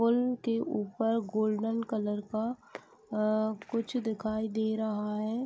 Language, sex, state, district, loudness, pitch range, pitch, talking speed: Hindi, female, Bihar, East Champaran, -32 LUFS, 215-230 Hz, 220 Hz, 130 wpm